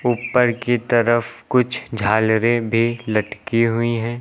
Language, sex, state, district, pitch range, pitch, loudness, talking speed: Hindi, male, Uttar Pradesh, Lucknow, 115-120 Hz, 115 Hz, -19 LUFS, 130 wpm